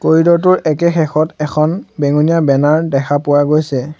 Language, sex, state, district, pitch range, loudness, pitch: Assamese, male, Assam, Sonitpur, 145-165 Hz, -13 LUFS, 155 Hz